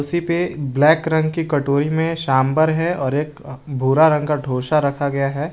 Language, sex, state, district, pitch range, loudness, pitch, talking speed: Hindi, male, Jharkhand, Garhwa, 140-160 Hz, -18 LUFS, 150 Hz, 195 wpm